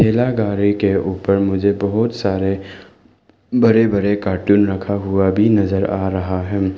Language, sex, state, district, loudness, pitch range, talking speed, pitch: Hindi, male, Arunachal Pradesh, Lower Dibang Valley, -17 LUFS, 95-105 Hz, 150 wpm, 100 Hz